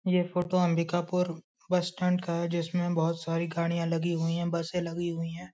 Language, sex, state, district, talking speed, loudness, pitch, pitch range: Hindi, male, Chhattisgarh, Sarguja, 195 wpm, -30 LUFS, 170 Hz, 170-180 Hz